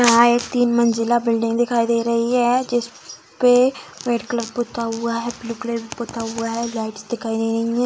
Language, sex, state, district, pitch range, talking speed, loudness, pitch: Hindi, female, Bihar, Samastipur, 230-240 Hz, 205 wpm, -20 LUFS, 235 Hz